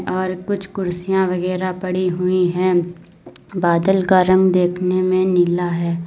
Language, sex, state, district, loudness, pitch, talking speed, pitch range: Hindi, female, Uttar Pradesh, Lalitpur, -18 LUFS, 185 Hz, 140 wpm, 175-185 Hz